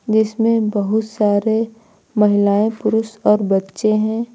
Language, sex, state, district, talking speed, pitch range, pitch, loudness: Hindi, female, Uttar Pradesh, Lucknow, 110 wpm, 205-220 Hz, 215 Hz, -17 LUFS